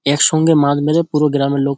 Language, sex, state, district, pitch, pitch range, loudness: Bengali, male, West Bengal, Dakshin Dinajpur, 145 Hz, 140-155 Hz, -14 LUFS